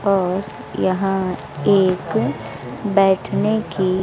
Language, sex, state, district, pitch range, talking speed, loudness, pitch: Hindi, female, Bihar, West Champaran, 180-195 Hz, 75 wpm, -19 LUFS, 190 Hz